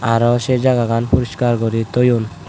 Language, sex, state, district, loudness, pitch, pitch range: Chakma, male, Tripura, West Tripura, -16 LUFS, 120 Hz, 115-125 Hz